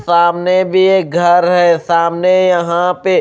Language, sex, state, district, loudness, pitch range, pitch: Hindi, male, Odisha, Malkangiri, -12 LUFS, 170-185 Hz, 175 Hz